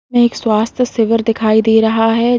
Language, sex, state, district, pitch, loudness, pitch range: Hindi, female, Uttar Pradesh, Deoria, 225 Hz, -13 LUFS, 220-240 Hz